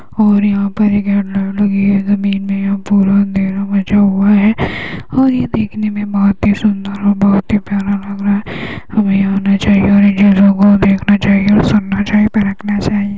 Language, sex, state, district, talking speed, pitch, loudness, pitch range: Hindi, female, Uttar Pradesh, Hamirpur, 190 wpm, 200 Hz, -13 LUFS, 200-205 Hz